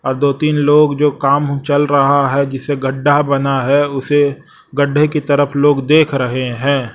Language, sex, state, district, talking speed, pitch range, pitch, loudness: Hindi, male, Chhattisgarh, Raipur, 180 wpm, 135-145 Hz, 140 Hz, -14 LUFS